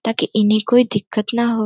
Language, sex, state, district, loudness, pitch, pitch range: Hindi, female, Uttar Pradesh, Gorakhpur, -17 LUFS, 225 Hz, 215-235 Hz